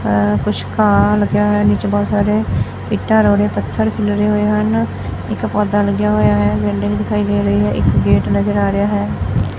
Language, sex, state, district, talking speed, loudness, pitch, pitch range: Punjabi, female, Punjab, Fazilka, 190 wpm, -15 LUFS, 105 Hz, 100-105 Hz